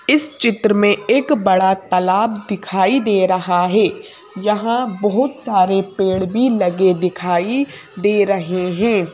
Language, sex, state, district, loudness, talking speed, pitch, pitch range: Hindi, female, Madhya Pradesh, Bhopal, -16 LUFS, 130 wpm, 205 Hz, 185-230 Hz